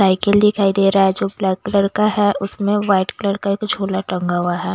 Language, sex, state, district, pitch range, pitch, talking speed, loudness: Hindi, female, Bihar, West Champaran, 190-205 Hz, 195 Hz, 240 wpm, -17 LUFS